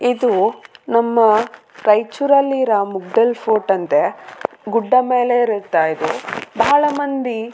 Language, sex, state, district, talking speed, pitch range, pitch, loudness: Kannada, female, Karnataka, Raichur, 105 wpm, 210-250 Hz, 230 Hz, -17 LUFS